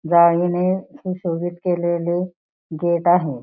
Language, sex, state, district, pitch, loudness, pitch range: Marathi, female, Maharashtra, Pune, 175 Hz, -20 LUFS, 170-180 Hz